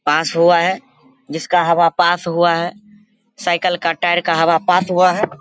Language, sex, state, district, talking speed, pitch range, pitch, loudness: Hindi, male, Bihar, Begusarai, 180 wpm, 170-185 Hz, 175 Hz, -15 LUFS